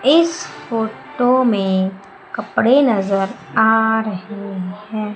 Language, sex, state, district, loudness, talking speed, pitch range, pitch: Hindi, female, Madhya Pradesh, Umaria, -18 LUFS, 95 wpm, 195-245 Hz, 215 Hz